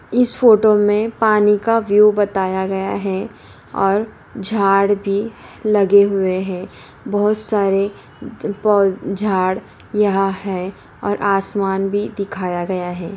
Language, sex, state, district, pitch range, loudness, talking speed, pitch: Hindi, female, Uttar Pradesh, Varanasi, 195-210 Hz, -17 LUFS, 125 wpm, 200 Hz